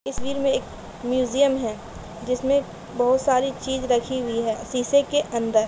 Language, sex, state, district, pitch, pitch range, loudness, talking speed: Hindi, female, Bihar, Gopalganj, 255 Hz, 235-270 Hz, -23 LUFS, 160 wpm